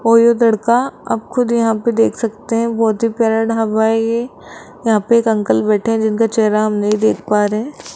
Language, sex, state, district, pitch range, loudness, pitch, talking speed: Hindi, female, Rajasthan, Jaipur, 215-230 Hz, -15 LUFS, 225 Hz, 225 wpm